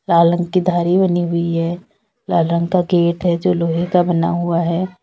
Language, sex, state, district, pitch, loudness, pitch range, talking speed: Hindi, female, Uttar Pradesh, Lalitpur, 175 Hz, -17 LUFS, 170-180 Hz, 215 wpm